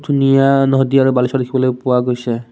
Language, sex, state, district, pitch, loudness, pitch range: Assamese, male, Assam, Kamrup Metropolitan, 130 Hz, -14 LUFS, 125-135 Hz